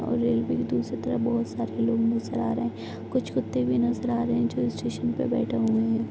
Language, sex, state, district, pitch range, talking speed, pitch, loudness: Hindi, female, Uttar Pradesh, Gorakhpur, 115-120 Hz, 245 wpm, 115 Hz, -26 LUFS